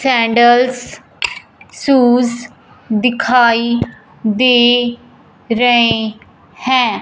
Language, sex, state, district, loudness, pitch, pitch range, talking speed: Hindi, male, Punjab, Fazilka, -13 LUFS, 240 Hz, 235-245 Hz, 50 wpm